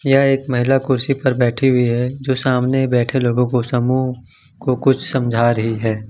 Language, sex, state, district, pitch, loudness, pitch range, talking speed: Hindi, male, Jharkhand, Ranchi, 125 Hz, -17 LUFS, 120-135 Hz, 195 wpm